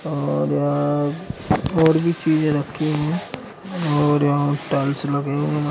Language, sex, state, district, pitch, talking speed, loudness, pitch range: Hindi, male, Uttar Pradesh, Etah, 145 Hz, 105 wpm, -20 LUFS, 145-155 Hz